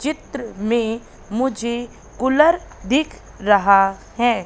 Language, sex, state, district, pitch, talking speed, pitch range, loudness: Hindi, female, Madhya Pradesh, Katni, 235 Hz, 95 wpm, 210-265 Hz, -19 LUFS